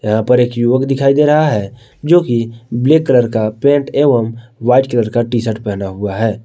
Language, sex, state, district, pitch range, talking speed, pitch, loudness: Hindi, male, Jharkhand, Palamu, 110-135 Hz, 195 wpm, 120 Hz, -14 LUFS